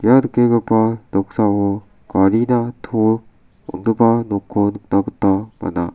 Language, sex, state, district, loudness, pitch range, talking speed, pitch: Garo, male, Meghalaya, South Garo Hills, -17 LUFS, 100-115 Hz, 100 wpm, 110 Hz